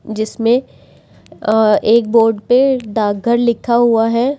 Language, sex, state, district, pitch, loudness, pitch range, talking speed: Hindi, female, Delhi, New Delhi, 230 Hz, -14 LUFS, 220-240 Hz, 135 wpm